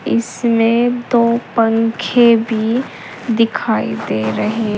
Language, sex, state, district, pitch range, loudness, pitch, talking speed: Hindi, female, Uttar Pradesh, Saharanpur, 220-235 Hz, -15 LUFS, 230 Hz, 90 wpm